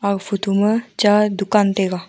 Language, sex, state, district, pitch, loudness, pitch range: Wancho, female, Arunachal Pradesh, Longding, 200 Hz, -17 LUFS, 195-210 Hz